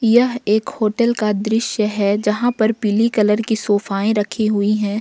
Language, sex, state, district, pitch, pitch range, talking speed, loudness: Hindi, female, Jharkhand, Ranchi, 215 Hz, 210-225 Hz, 180 wpm, -18 LUFS